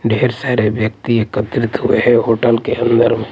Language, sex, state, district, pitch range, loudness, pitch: Hindi, male, Delhi, New Delhi, 110-120 Hz, -15 LUFS, 115 Hz